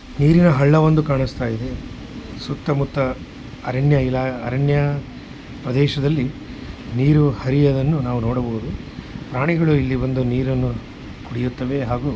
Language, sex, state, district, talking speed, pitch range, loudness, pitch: Kannada, male, Karnataka, Shimoga, 95 wpm, 125-145 Hz, -19 LUFS, 135 Hz